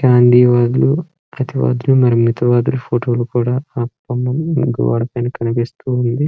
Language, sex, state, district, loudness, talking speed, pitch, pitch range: Telugu, male, Andhra Pradesh, Srikakulam, -15 LUFS, 145 wpm, 125 Hz, 120-130 Hz